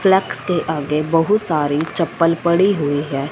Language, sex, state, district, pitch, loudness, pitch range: Hindi, female, Punjab, Fazilka, 165 Hz, -18 LUFS, 145-175 Hz